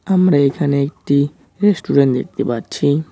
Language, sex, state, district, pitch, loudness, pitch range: Bengali, male, West Bengal, Cooch Behar, 145 Hz, -17 LUFS, 140-165 Hz